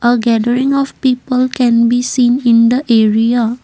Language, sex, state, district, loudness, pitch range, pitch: English, female, Assam, Kamrup Metropolitan, -12 LUFS, 235-255 Hz, 245 Hz